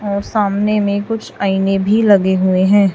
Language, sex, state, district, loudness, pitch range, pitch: Hindi, female, Chhattisgarh, Raipur, -15 LUFS, 195-210 Hz, 200 Hz